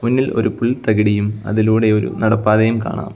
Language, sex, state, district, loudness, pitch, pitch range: Malayalam, male, Kerala, Kollam, -16 LUFS, 110 Hz, 105-115 Hz